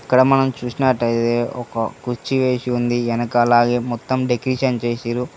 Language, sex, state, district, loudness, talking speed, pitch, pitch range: Telugu, male, Telangana, Mahabubabad, -19 LUFS, 125 wpm, 120 Hz, 120-130 Hz